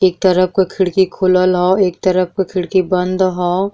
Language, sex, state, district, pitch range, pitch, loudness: Bhojpuri, female, Uttar Pradesh, Deoria, 180-190 Hz, 185 Hz, -15 LUFS